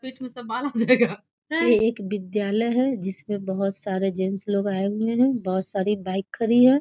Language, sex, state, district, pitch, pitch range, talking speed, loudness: Maithili, female, Bihar, Muzaffarpur, 210 Hz, 195-245 Hz, 220 wpm, -23 LUFS